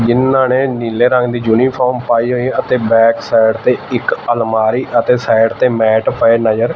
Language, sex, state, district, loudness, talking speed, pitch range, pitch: Punjabi, male, Punjab, Fazilka, -13 LUFS, 175 wpm, 115-125 Hz, 120 Hz